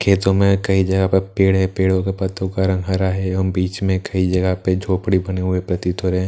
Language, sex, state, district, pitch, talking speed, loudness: Hindi, male, Bihar, Katihar, 95 Hz, 260 wpm, -18 LUFS